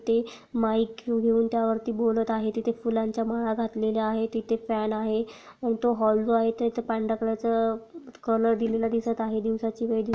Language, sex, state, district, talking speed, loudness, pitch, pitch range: Marathi, female, Maharashtra, Sindhudurg, 175 wpm, -27 LUFS, 225 Hz, 225-230 Hz